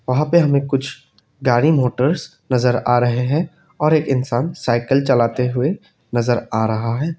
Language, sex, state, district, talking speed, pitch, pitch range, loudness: Hindi, male, Assam, Kamrup Metropolitan, 165 wpm, 130 Hz, 120-150 Hz, -18 LUFS